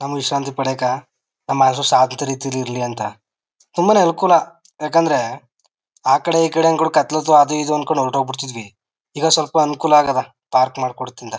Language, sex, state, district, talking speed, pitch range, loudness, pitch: Kannada, male, Karnataka, Chamarajanagar, 110 wpm, 130-155 Hz, -17 LUFS, 140 Hz